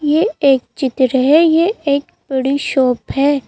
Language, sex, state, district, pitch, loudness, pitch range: Hindi, female, Madhya Pradesh, Bhopal, 280 Hz, -15 LUFS, 265-305 Hz